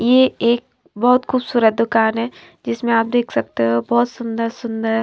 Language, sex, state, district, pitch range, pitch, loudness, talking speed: Hindi, female, Himachal Pradesh, Shimla, 225-245 Hz, 230 Hz, -18 LUFS, 165 wpm